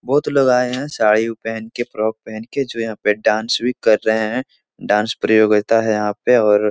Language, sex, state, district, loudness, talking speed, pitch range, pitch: Hindi, male, Bihar, Jahanabad, -17 LUFS, 225 wpm, 105-125 Hz, 110 Hz